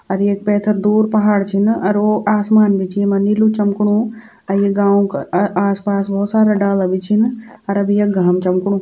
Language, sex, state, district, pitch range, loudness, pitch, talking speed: Garhwali, female, Uttarakhand, Tehri Garhwal, 200-210 Hz, -15 LUFS, 200 Hz, 195 wpm